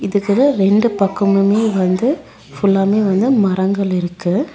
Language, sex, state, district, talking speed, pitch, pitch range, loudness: Tamil, female, Tamil Nadu, Nilgiris, 105 wpm, 200 Hz, 190-215 Hz, -15 LUFS